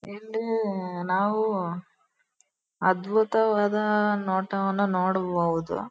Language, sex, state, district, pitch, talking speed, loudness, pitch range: Kannada, female, Karnataka, Dharwad, 200 Hz, 50 wpm, -26 LUFS, 185-215 Hz